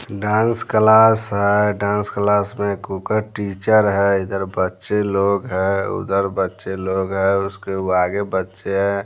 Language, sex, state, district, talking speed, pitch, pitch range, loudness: Hindi, male, Bihar, Patna, 140 wpm, 100 Hz, 95-105 Hz, -19 LUFS